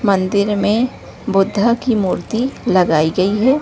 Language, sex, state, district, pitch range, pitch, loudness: Hindi, female, Bihar, Darbhanga, 190-235 Hz, 205 Hz, -16 LUFS